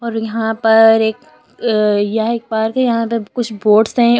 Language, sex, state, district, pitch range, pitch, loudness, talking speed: Hindi, female, Uttar Pradesh, Lucknow, 220-235 Hz, 225 Hz, -15 LUFS, 200 wpm